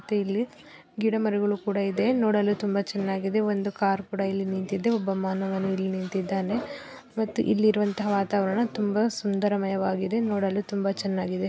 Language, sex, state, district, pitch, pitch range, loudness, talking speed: Kannada, female, Karnataka, Belgaum, 200 Hz, 195-215 Hz, -26 LUFS, 130 wpm